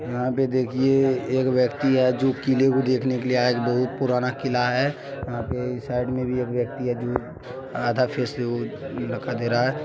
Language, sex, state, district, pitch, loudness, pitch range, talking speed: Maithili, male, Bihar, Supaul, 125 Hz, -24 LUFS, 125-130 Hz, 200 wpm